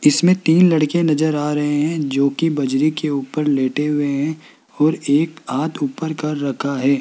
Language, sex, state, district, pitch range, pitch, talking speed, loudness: Hindi, male, Rajasthan, Jaipur, 140-155 Hz, 150 Hz, 190 wpm, -18 LUFS